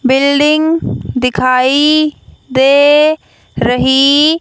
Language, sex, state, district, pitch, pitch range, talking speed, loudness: Hindi, female, Haryana, Jhajjar, 285 Hz, 260-305 Hz, 55 wpm, -10 LUFS